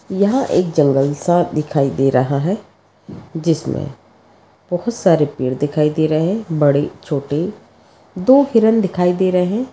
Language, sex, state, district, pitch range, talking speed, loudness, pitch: Hindi, female, Maharashtra, Pune, 145-195 Hz, 150 wpm, -17 LUFS, 165 Hz